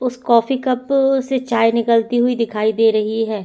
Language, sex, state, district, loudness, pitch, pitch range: Hindi, female, Chhattisgarh, Sukma, -17 LUFS, 235 Hz, 225-255 Hz